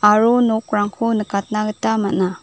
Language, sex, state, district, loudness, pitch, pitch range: Garo, female, Meghalaya, South Garo Hills, -18 LUFS, 215 Hz, 205-225 Hz